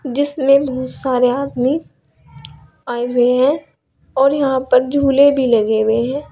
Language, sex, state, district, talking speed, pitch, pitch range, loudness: Hindi, female, Uttar Pradesh, Saharanpur, 140 wpm, 265 Hz, 250-280 Hz, -16 LUFS